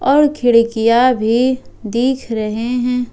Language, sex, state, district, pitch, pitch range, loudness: Hindi, female, Jharkhand, Ranchi, 245 Hz, 230-255 Hz, -15 LUFS